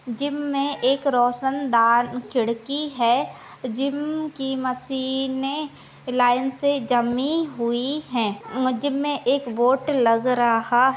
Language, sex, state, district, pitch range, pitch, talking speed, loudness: Hindi, female, Maharashtra, Sindhudurg, 245-280 Hz, 260 Hz, 100 wpm, -22 LUFS